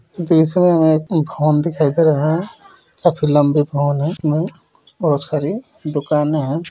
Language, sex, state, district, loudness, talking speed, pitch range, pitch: Hindi, male, West Bengal, Purulia, -17 LUFS, 145 wpm, 150-170 Hz, 155 Hz